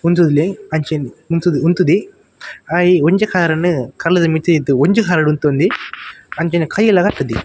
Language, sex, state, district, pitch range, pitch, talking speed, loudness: Tulu, male, Karnataka, Dakshina Kannada, 155-180 Hz, 170 Hz, 145 wpm, -15 LUFS